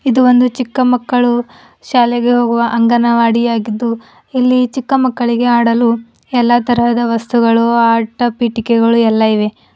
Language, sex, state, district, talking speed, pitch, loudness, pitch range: Kannada, female, Karnataka, Bidar, 110 wpm, 235 Hz, -13 LUFS, 230-245 Hz